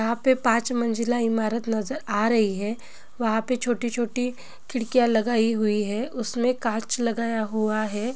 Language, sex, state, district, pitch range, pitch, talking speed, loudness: Hindi, female, Chhattisgarh, Bilaspur, 220-245 Hz, 230 Hz, 160 wpm, -24 LUFS